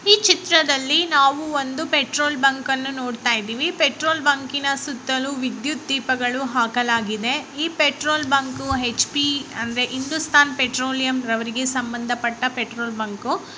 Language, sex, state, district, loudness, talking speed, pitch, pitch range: Kannada, female, Karnataka, Raichur, -20 LUFS, 130 wpm, 270 Hz, 245-295 Hz